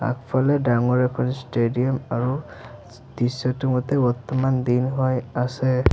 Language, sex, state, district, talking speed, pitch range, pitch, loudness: Assamese, male, Assam, Sonitpur, 110 wpm, 120-130 Hz, 125 Hz, -22 LUFS